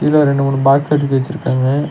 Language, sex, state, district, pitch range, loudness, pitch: Tamil, male, Tamil Nadu, Nilgiris, 135-150 Hz, -14 LUFS, 140 Hz